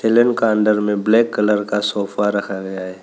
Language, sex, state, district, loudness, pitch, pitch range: Hindi, male, Arunachal Pradesh, Papum Pare, -18 LUFS, 105 Hz, 100-110 Hz